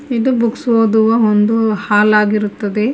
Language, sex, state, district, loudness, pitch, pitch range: Kannada, female, Karnataka, Bangalore, -13 LUFS, 220 Hz, 210-230 Hz